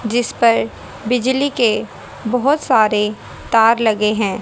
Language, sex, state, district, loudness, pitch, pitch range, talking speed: Hindi, female, Haryana, Jhajjar, -16 LUFS, 225 Hz, 210-245 Hz, 120 wpm